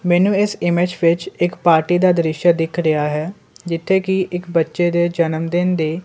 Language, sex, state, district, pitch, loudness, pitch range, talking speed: Punjabi, male, Punjab, Kapurthala, 175 Hz, -17 LUFS, 165-180 Hz, 180 wpm